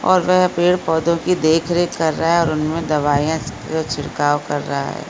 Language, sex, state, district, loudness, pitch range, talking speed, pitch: Hindi, female, Bihar, Supaul, -18 LUFS, 145-170 Hz, 200 wpm, 160 Hz